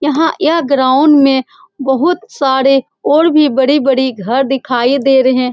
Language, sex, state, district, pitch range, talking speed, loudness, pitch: Hindi, female, Bihar, Saran, 265-305 Hz, 150 wpm, -12 LUFS, 270 Hz